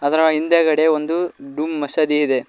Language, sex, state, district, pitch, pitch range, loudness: Kannada, male, Karnataka, Koppal, 155 Hz, 150-160 Hz, -18 LUFS